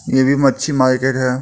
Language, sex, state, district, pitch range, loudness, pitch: Hindi, male, Uttar Pradesh, Etah, 130-135 Hz, -15 LUFS, 130 Hz